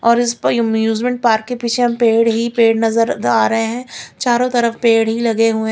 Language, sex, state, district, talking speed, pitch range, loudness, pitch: Hindi, female, Chandigarh, Chandigarh, 230 wpm, 225-240 Hz, -15 LUFS, 230 Hz